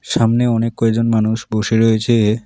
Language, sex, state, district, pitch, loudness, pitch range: Bengali, male, West Bengal, Alipurduar, 115 Hz, -16 LUFS, 110-115 Hz